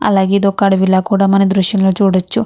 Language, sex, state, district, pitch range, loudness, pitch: Telugu, female, Andhra Pradesh, Krishna, 190-200 Hz, -12 LUFS, 195 Hz